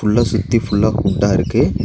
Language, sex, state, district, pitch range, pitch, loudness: Tamil, male, Tamil Nadu, Nilgiris, 100-110 Hz, 105 Hz, -16 LUFS